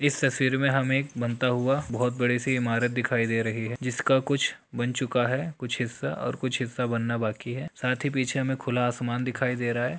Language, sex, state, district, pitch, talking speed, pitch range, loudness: Hindi, male, Bihar, Jamui, 125 Hz, 230 wpm, 120-135 Hz, -27 LUFS